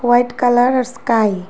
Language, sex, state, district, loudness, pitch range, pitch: Bengali, female, Assam, Hailakandi, -15 LUFS, 230-250 Hz, 245 Hz